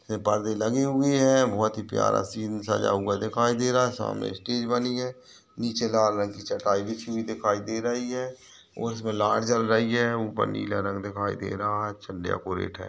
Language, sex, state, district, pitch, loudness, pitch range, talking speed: Hindi, male, Uttar Pradesh, Ghazipur, 110 Hz, -26 LUFS, 105-120 Hz, 215 wpm